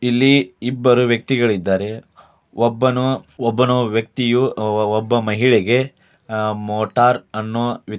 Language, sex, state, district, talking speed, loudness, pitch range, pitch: Kannada, male, Karnataka, Dharwad, 70 wpm, -18 LUFS, 110-125 Hz, 120 Hz